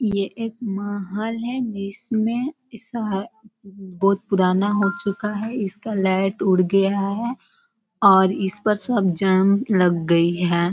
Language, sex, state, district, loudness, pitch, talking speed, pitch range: Hindi, female, Bihar, Jahanabad, -21 LUFS, 200 Hz, 130 wpm, 190-225 Hz